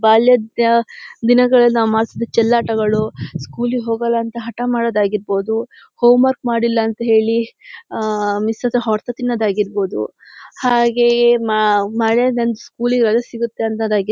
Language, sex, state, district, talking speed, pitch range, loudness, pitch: Kannada, female, Karnataka, Shimoga, 130 wpm, 220-240 Hz, -16 LUFS, 230 Hz